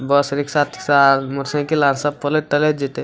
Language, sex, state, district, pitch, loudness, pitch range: Maithili, male, Bihar, Supaul, 145 Hz, -18 LUFS, 140-145 Hz